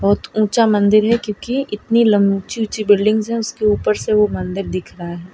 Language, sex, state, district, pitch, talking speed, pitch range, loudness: Hindi, female, Gujarat, Valsad, 210 Hz, 215 wpm, 200-220 Hz, -17 LUFS